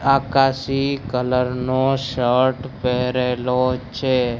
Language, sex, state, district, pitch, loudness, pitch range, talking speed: Gujarati, male, Gujarat, Gandhinagar, 130 Hz, -20 LUFS, 125-135 Hz, 80 wpm